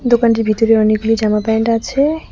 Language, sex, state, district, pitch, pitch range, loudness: Bengali, female, West Bengal, Cooch Behar, 225 Hz, 220-235 Hz, -14 LUFS